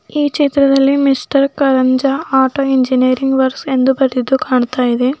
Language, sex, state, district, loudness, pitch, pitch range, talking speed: Kannada, female, Karnataka, Bidar, -13 LUFS, 265 Hz, 255-275 Hz, 125 wpm